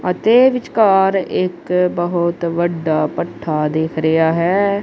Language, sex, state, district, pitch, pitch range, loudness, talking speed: Punjabi, female, Punjab, Kapurthala, 175 Hz, 160-195 Hz, -16 LUFS, 110 wpm